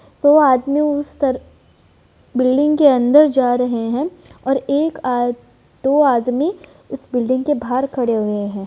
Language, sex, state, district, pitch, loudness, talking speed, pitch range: Hindi, female, Bihar, Vaishali, 265 Hz, -17 LUFS, 150 wpm, 245-290 Hz